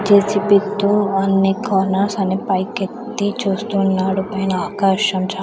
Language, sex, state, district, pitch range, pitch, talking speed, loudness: Telugu, female, Andhra Pradesh, Sri Satya Sai, 190-205 Hz, 195 Hz, 110 wpm, -18 LUFS